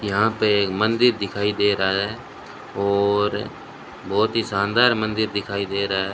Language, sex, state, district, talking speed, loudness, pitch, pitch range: Hindi, male, Rajasthan, Bikaner, 165 wpm, -21 LUFS, 105 Hz, 100-110 Hz